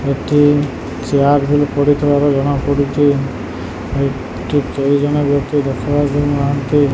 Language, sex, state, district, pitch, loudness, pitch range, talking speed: Odia, male, Odisha, Sambalpur, 140 Hz, -15 LUFS, 140-145 Hz, 50 wpm